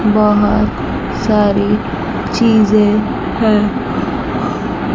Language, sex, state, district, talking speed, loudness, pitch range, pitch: Hindi, female, Chandigarh, Chandigarh, 50 wpm, -14 LUFS, 210-220 Hz, 215 Hz